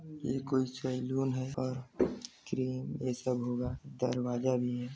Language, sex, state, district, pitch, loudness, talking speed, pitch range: Hindi, male, Chhattisgarh, Sarguja, 130 Hz, -35 LUFS, 155 wpm, 125-130 Hz